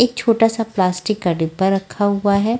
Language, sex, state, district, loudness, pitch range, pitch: Hindi, female, Punjab, Fazilka, -18 LUFS, 190-225 Hz, 205 Hz